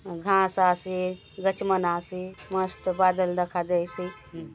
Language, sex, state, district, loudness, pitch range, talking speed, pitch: Halbi, female, Chhattisgarh, Bastar, -26 LUFS, 175-185 Hz, 120 wpm, 185 Hz